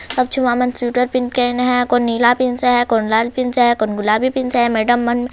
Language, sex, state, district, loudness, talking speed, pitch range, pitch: Chhattisgarhi, female, Chhattisgarh, Jashpur, -16 LUFS, 250 wpm, 240-250 Hz, 245 Hz